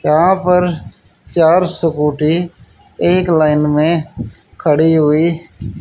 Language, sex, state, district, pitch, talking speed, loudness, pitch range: Hindi, female, Haryana, Jhajjar, 155 Hz, 95 wpm, -14 LUFS, 120-170 Hz